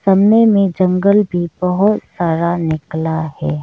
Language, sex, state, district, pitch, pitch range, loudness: Hindi, female, Arunachal Pradesh, Lower Dibang Valley, 180 Hz, 160-200 Hz, -15 LUFS